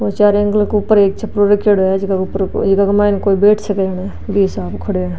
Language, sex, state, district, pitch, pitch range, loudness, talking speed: Marwari, female, Rajasthan, Nagaur, 200 Hz, 195-205 Hz, -14 LUFS, 255 wpm